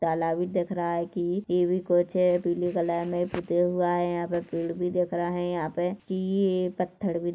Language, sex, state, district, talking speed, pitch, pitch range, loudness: Hindi, female, Chhattisgarh, Korba, 230 wpm, 175 Hz, 175-180 Hz, -27 LUFS